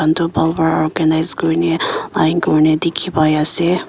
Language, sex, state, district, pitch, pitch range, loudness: Nagamese, female, Nagaland, Kohima, 160 Hz, 155-170 Hz, -15 LUFS